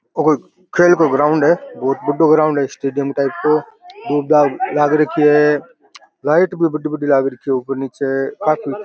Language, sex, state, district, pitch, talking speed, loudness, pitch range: Rajasthani, male, Rajasthan, Nagaur, 150 Hz, 150 wpm, -16 LUFS, 135-155 Hz